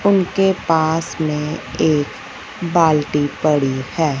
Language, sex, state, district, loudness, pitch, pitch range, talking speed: Hindi, female, Punjab, Fazilka, -18 LUFS, 155 Hz, 145-170 Hz, 100 wpm